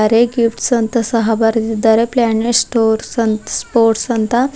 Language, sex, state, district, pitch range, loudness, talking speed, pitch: Kannada, female, Karnataka, Bidar, 225-235 Hz, -14 LUFS, 130 wpm, 230 Hz